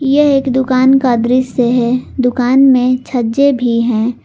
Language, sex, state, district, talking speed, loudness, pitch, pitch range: Hindi, female, Jharkhand, Garhwa, 155 wpm, -12 LUFS, 250 Hz, 245-265 Hz